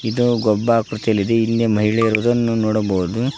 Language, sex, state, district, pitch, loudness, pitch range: Kannada, male, Karnataka, Koppal, 115 Hz, -18 LUFS, 110-115 Hz